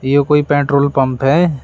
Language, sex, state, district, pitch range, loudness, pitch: Hindi, male, Uttar Pradesh, Shamli, 135-145 Hz, -14 LUFS, 140 Hz